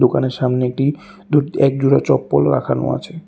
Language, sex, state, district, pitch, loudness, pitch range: Bengali, male, Tripura, West Tripura, 135 Hz, -17 LUFS, 125-145 Hz